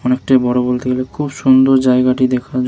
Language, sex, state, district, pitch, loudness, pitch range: Bengali, male, West Bengal, Jhargram, 130 Hz, -14 LUFS, 125-130 Hz